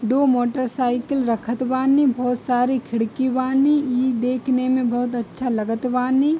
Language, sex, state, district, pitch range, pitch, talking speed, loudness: Bhojpuri, female, Bihar, East Champaran, 245-260 Hz, 255 Hz, 140 wpm, -20 LUFS